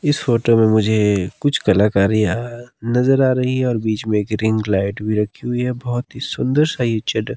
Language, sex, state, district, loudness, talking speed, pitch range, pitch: Hindi, male, Himachal Pradesh, Shimla, -18 LUFS, 210 wpm, 105-125 Hz, 115 Hz